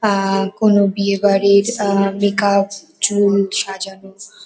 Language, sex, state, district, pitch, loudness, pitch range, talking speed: Bengali, female, West Bengal, Kolkata, 200 Hz, -16 LUFS, 195-205 Hz, 120 wpm